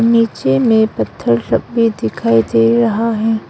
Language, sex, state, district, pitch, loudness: Hindi, female, Arunachal Pradesh, Longding, 215 Hz, -14 LUFS